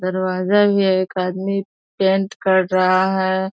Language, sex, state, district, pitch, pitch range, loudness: Hindi, female, Bihar, East Champaran, 190 Hz, 185-195 Hz, -18 LUFS